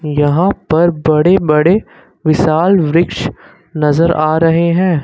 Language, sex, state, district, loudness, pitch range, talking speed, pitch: Hindi, male, Uttar Pradesh, Lucknow, -12 LUFS, 155-175 Hz, 120 wpm, 165 Hz